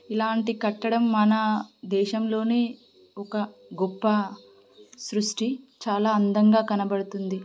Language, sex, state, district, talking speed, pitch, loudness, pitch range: Telugu, female, Telangana, Karimnagar, 80 wpm, 215 Hz, -25 LUFS, 200-225 Hz